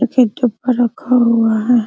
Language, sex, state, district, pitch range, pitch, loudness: Hindi, female, Bihar, Araria, 230-250 Hz, 245 Hz, -15 LUFS